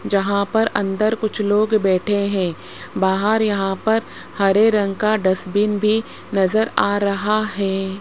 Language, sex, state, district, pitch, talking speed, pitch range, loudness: Hindi, female, Rajasthan, Jaipur, 205 Hz, 140 wpm, 195-215 Hz, -19 LUFS